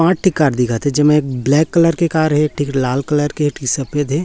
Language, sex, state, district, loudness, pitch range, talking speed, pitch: Hindi, male, Chhattisgarh, Raipur, -16 LUFS, 140-155 Hz, 240 wpm, 145 Hz